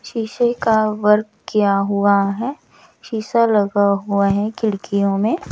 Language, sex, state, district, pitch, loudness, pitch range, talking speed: Hindi, male, Odisha, Nuapada, 210 Hz, -18 LUFS, 200-225 Hz, 130 wpm